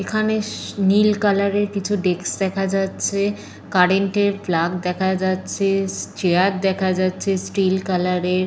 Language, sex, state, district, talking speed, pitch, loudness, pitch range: Bengali, female, Jharkhand, Jamtara, 125 wpm, 195 Hz, -20 LUFS, 185-200 Hz